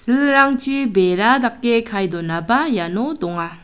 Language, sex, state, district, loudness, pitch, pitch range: Garo, female, Meghalaya, South Garo Hills, -17 LUFS, 230 Hz, 180-260 Hz